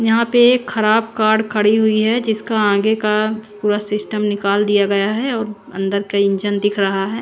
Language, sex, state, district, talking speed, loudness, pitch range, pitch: Hindi, female, Chandigarh, Chandigarh, 200 wpm, -17 LUFS, 205-220 Hz, 210 Hz